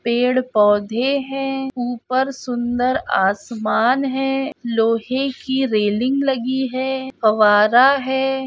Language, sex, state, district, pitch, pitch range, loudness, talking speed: Hindi, female, Chhattisgarh, Korba, 255 Hz, 230-265 Hz, -18 LUFS, 90 wpm